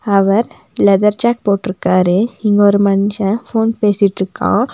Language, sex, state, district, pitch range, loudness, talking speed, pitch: Tamil, female, Tamil Nadu, Nilgiris, 195-225 Hz, -14 LUFS, 115 wpm, 205 Hz